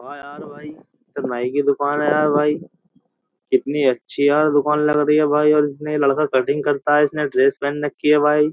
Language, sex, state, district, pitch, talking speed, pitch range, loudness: Hindi, male, Uttar Pradesh, Jyotiba Phule Nagar, 150 Hz, 190 wpm, 140-150 Hz, -18 LUFS